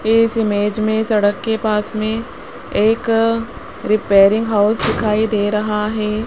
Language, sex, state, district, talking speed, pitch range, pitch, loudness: Hindi, female, Rajasthan, Jaipur, 135 wpm, 210-225 Hz, 215 Hz, -16 LUFS